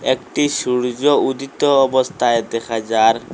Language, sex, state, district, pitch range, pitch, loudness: Bengali, male, Assam, Hailakandi, 115-135 Hz, 125 Hz, -17 LUFS